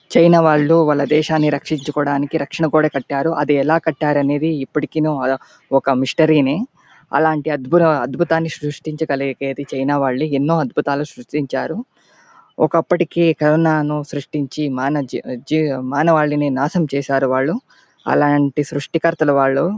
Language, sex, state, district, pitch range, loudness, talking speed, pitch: Telugu, male, Andhra Pradesh, Chittoor, 140-160 Hz, -17 LUFS, 120 wpm, 150 Hz